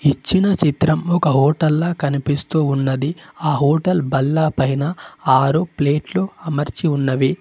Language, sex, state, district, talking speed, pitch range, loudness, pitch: Telugu, male, Telangana, Mahabubabad, 105 wpm, 140-165 Hz, -18 LUFS, 150 Hz